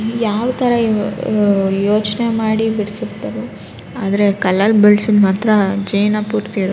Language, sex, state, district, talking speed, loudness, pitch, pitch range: Kannada, female, Karnataka, Raichur, 125 wpm, -15 LUFS, 210 Hz, 200-220 Hz